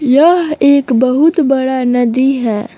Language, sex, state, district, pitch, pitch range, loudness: Hindi, female, Jharkhand, Palamu, 265 Hz, 245-290 Hz, -11 LUFS